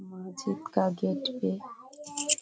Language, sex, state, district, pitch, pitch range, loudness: Hindi, female, Bihar, Kishanganj, 235 Hz, 185-290 Hz, -31 LUFS